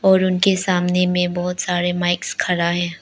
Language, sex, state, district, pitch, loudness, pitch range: Hindi, female, Arunachal Pradesh, Lower Dibang Valley, 180 Hz, -19 LUFS, 175-180 Hz